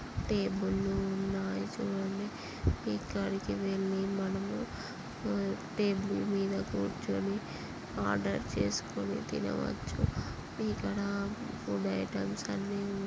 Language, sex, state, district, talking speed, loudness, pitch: Telugu, female, Andhra Pradesh, Srikakulam, 85 wpm, -35 LUFS, 100 Hz